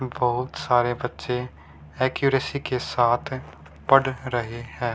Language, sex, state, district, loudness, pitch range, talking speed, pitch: Hindi, male, Haryana, Rohtak, -24 LUFS, 120-130 Hz, 110 wpm, 125 Hz